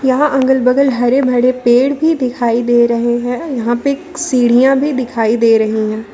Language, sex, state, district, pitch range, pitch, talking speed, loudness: Hindi, female, Jharkhand, Ranchi, 240-270 Hz, 250 Hz, 185 wpm, -13 LUFS